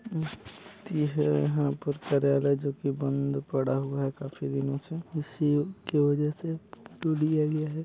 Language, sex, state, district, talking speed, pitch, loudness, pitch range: Hindi, male, Chhattisgarh, Balrampur, 130 wpm, 145 Hz, -29 LUFS, 140-155 Hz